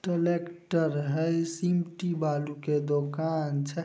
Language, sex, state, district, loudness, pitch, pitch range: Maithili, male, Bihar, Samastipur, -29 LUFS, 160 Hz, 150-170 Hz